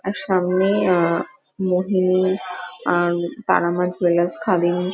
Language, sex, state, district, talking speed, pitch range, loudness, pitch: Bengali, female, West Bengal, Dakshin Dinajpur, 110 wpm, 175-185 Hz, -20 LUFS, 180 Hz